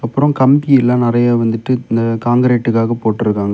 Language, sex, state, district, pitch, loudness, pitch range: Tamil, male, Tamil Nadu, Kanyakumari, 120 Hz, -14 LUFS, 115-125 Hz